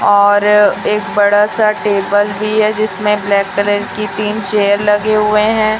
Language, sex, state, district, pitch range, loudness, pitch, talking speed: Hindi, female, Chhattisgarh, Raipur, 205-215 Hz, -13 LUFS, 210 Hz, 165 wpm